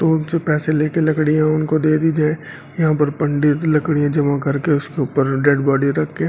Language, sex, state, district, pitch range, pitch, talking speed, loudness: Hindi, male, Delhi, New Delhi, 145-155 Hz, 150 Hz, 210 wpm, -17 LUFS